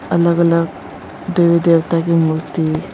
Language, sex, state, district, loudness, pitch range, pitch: Hindi, female, Rajasthan, Churu, -15 LUFS, 160-170 Hz, 170 Hz